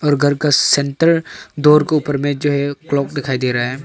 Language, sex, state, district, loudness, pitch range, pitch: Hindi, male, Arunachal Pradesh, Longding, -16 LUFS, 140-150 Hz, 145 Hz